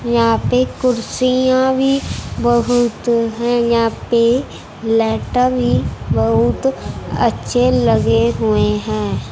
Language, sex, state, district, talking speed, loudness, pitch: Hindi, female, Punjab, Fazilka, 90 wpm, -16 LUFS, 230 Hz